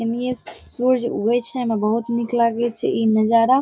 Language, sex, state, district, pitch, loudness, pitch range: Maithili, female, Bihar, Saharsa, 235 Hz, -20 LUFS, 225-245 Hz